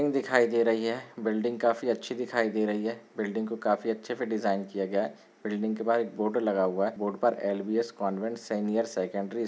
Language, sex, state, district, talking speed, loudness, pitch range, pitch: Hindi, male, Rajasthan, Nagaur, 220 wpm, -29 LUFS, 105-115 Hz, 110 Hz